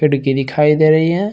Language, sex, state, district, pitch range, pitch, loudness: Hindi, male, Uttar Pradesh, Shamli, 140-160 Hz, 150 Hz, -14 LUFS